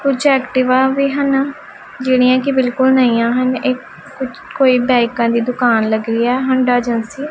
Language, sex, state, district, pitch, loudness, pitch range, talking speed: Punjabi, female, Punjab, Pathankot, 255 Hz, -15 LUFS, 245-270 Hz, 170 wpm